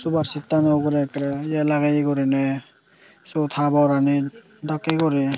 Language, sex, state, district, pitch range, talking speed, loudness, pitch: Chakma, male, Tripura, Dhalai, 140-155 Hz, 110 wpm, -21 LUFS, 145 Hz